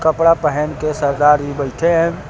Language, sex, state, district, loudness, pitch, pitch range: Hindi, male, Uttar Pradesh, Lucknow, -16 LUFS, 150 Hz, 145-165 Hz